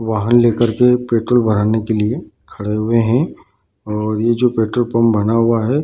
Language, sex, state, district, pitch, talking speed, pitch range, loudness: Hindi, male, Bihar, Bhagalpur, 115 Hz, 195 wpm, 110-120 Hz, -16 LUFS